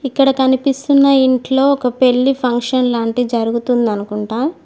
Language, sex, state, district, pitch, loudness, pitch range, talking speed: Telugu, female, Telangana, Mahabubabad, 255 Hz, -14 LUFS, 240-270 Hz, 115 wpm